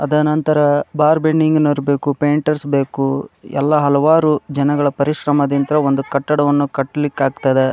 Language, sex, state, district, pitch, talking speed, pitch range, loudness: Kannada, male, Karnataka, Dharwad, 145 Hz, 130 wpm, 140-150 Hz, -16 LUFS